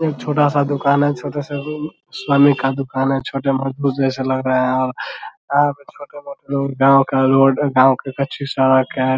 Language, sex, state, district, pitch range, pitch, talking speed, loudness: Hindi, male, Bihar, Vaishali, 130-145 Hz, 135 Hz, 210 wpm, -17 LUFS